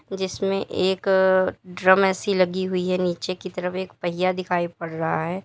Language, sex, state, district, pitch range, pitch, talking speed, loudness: Hindi, female, Uttar Pradesh, Lalitpur, 180-190 Hz, 185 Hz, 175 wpm, -23 LUFS